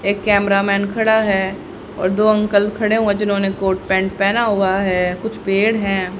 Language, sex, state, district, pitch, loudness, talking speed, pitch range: Hindi, female, Haryana, Charkhi Dadri, 200 Hz, -17 LUFS, 185 wpm, 190-210 Hz